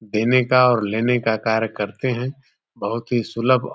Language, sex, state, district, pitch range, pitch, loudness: Hindi, male, Uttar Pradesh, Deoria, 110-125 Hz, 120 Hz, -20 LUFS